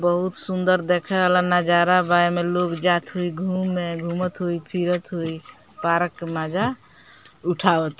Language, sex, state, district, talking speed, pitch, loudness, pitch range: Bhojpuri, female, Bihar, Muzaffarpur, 150 wpm, 175 Hz, -22 LUFS, 170-180 Hz